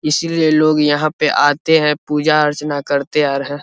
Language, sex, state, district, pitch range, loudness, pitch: Hindi, male, Bihar, Vaishali, 145-155 Hz, -15 LUFS, 150 Hz